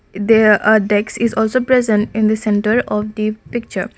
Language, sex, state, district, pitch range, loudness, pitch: English, female, Assam, Kamrup Metropolitan, 210-225 Hz, -15 LUFS, 215 Hz